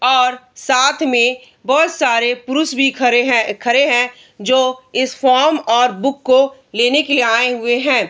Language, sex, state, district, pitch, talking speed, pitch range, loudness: Hindi, female, Bihar, Araria, 255 Hz, 170 wpm, 245-270 Hz, -14 LUFS